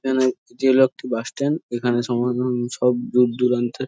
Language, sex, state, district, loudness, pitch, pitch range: Bengali, male, West Bengal, Jhargram, -21 LUFS, 125 Hz, 120-130 Hz